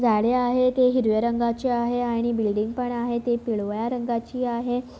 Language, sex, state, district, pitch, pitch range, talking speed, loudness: Marathi, female, Maharashtra, Sindhudurg, 240 Hz, 230-245 Hz, 170 wpm, -24 LUFS